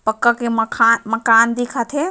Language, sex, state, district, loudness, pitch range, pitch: Chhattisgarhi, female, Chhattisgarh, Raigarh, -16 LUFS, 225-240 Hz, 230 Hz